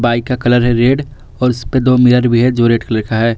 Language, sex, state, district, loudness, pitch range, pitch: Hindi, male, Jharkhand, Garhwa, -13 LUFS, 115-125 Hz, 120 Hz